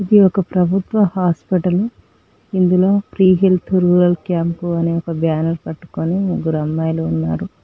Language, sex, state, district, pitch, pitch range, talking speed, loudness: Telugu, female, Telangana, Mahabubabad, 180 Hz, 165-190 Hz, 125 wpm, -17 LUFS